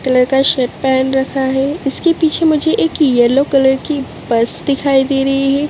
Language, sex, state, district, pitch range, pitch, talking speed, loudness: Hindi, female, Uttarakhand, Uttarkashi, 265-285 Hz, 270 Hz, 190 wpm, -14 LUFS